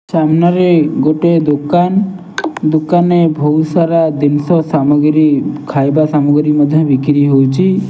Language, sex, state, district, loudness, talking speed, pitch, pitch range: Odia, male, Odisha, Nuapada, -12 LUFS, 90 wpm, 155 Hz, 145-170 Hz